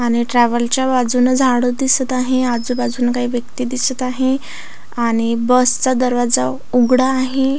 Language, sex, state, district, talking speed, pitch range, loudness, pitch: Marathi, female, Maharashtra, Aurangabad, 140 wpm, 245-260 Hz, -16 LUFS, 250 Hz